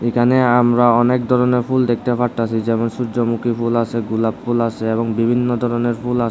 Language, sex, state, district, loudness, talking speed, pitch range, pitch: Bengali, male, Tripura, West Tripura, -17 LUFS, 180 wpm, 115-120 Hz, 120 Hz